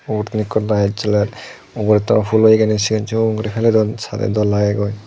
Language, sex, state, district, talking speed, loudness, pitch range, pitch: Chakma, male, Tripura, Dhalai, 190 wpm, -16 LUFS, 105-110 Hz, 110 Hz